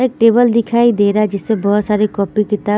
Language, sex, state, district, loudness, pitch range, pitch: Hindi, female, Bihar, Patna, -14 LUFS, 205-230 Hz, 210 Hz